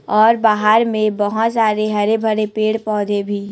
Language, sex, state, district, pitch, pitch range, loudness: Hindi, female, Chhattisgarh, Raipur, 215 Hz, 210-220 Hz, -16 LUFS